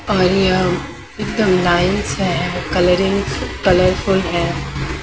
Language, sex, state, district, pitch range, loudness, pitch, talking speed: Hindi, female, Maharashtra, Mumbai Suburban, 180-190 Hz, -17 LUFS, 185 Hz, 95 wpm